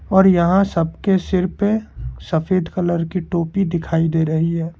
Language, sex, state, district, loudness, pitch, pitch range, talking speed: Hindi, male, Karnataka, Bangalore, -18 LUFS, 175 Hz, 165-190 Hz, 165 wpm